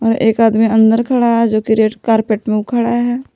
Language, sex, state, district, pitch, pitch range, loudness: Hindi, female, Jharkhand, Palamu, 225 Hz, 220-235 Hz, -13 LUFS